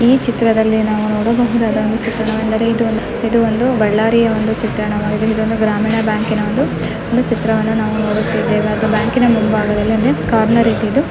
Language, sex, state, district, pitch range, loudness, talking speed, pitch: Kannada, female, Karnataka, Bellary, 215-230 Hz, -15 LUFS, 120 wpm, 220 Hz